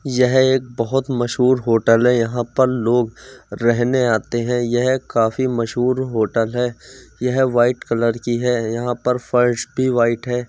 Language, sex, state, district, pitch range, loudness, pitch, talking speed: Hindi, male, Uttar Pradesh, Jyotiba Phule Nagar, 115-125 Hz, -18 LUFS, 120 Hz, 160 wpm